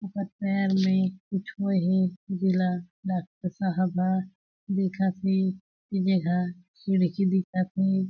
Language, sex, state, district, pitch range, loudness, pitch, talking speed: Chhattisgarhi, female, Chhattisgarh, Jashpur, 185-195 Hz, -27 LUFS, 190 Hz, 120 wpm